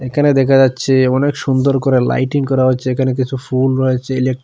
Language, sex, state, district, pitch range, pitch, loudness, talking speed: Bengali, male, Assam, Hailakandi, 130-135 Hz, 130 Hz, -14 LUFS, 205 wpm